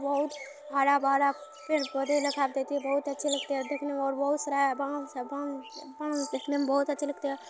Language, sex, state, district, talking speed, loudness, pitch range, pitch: Maithili, female, Bihar, Supaul, 225 wpm, -30 LUFS, 275-290 Hz, 280 Hz